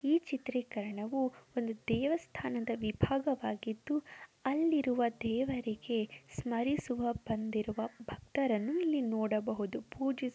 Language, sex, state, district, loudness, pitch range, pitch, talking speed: Kannada, female, Karnataka, Dharwad, -35 LUFS, 220-270 Hz, 240 Hz, 80 wpm